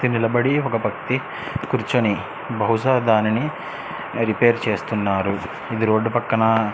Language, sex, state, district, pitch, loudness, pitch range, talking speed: Telugu, male, Andhra Pradesh, Krishna, 115 Hz, -21 LUFS, 110-120 Hz, 100 wpm